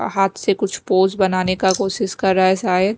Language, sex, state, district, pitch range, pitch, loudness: Hindi, female, Himachal Pradesh, Shimla, 185-195 Hz, 190 Hz, -18 LUFS